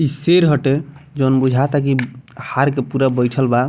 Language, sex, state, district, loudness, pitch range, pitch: Bhojpuri, male, Bihar, Muzaffarpur, -16 LUFS, 130-145 Hz, 135 Hz